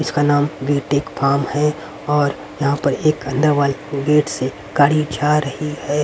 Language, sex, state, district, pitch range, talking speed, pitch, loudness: Hindi, male, Haryana, Rohtak, 140-150 Hz, 170 wpm, 145 Hz, -18 LUFS